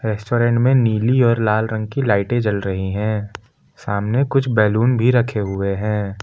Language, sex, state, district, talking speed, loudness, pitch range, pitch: Hindi, male, Jharkhand, Palamu, 175 wpm, -18 LUFS, 105-120 Hz, 110 Hz